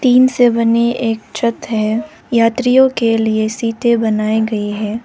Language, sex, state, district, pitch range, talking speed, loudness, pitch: Hindi, female, Arunachal Pradesh, Lower Dibang Valley, 220-240 Hz, 155 wpm, -15 LUFS, 230 Hz